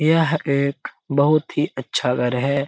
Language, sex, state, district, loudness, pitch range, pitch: Hindi, male, Bihar, Jamui, -20 LUFS, 130-150 Hz, 140 Hz